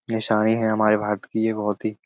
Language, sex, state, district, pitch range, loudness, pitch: Hindi, male, Uttar Pradesh, Budaun, 105-110 Hz, -22 LUFS, 110 Hz